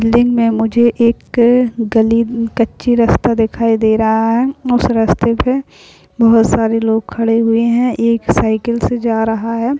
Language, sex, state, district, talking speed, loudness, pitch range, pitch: Hindi, female, Bihar, Kishanganj, 165 wpm, -13 LUFS, 225-235 Hz, 230 Hz